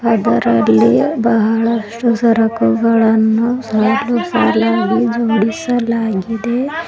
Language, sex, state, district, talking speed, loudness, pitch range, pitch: Kannada, female, Karnataka, Bidar, 50 wpm, -14 LUFS, 210-235 Hz, 225 Hz